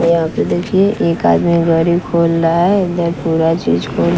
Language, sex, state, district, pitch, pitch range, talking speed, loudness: Hindi, female, Bihar, West Champaran, 170 Hz, 160-175 Hz, 185 wpm, -14 LUFS